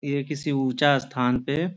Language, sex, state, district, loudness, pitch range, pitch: Hindi, male, Bihar, Jamui, -24 LUFS, 130-145 Hz, 140 Hz